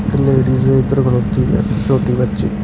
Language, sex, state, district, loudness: Punjabi, male, Karnataka, Bangalore, -15 LUFS